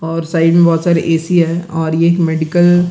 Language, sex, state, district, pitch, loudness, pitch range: Hindi, male, Bihar, Gaya, 165 Hz, -13 LUFS, 165-175 Hz